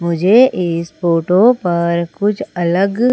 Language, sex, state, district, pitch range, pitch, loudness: Hindi, female, Madhya Pradesh, Umaria, 170-205 Hz, 175 Hz, -14 LUFS